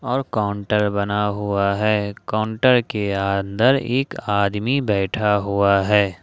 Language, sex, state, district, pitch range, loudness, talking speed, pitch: Hindi, male, Jharkhand, Ranchi, 100-110 Hz, -20 LUFS, 125 wpm, 105 Hz